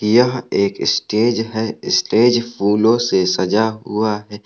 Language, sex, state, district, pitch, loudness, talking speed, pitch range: Hindi, male, Jharkhand, Palamu, 110 Hz, -17 LUFS, 135 wpm, 105-115 Hz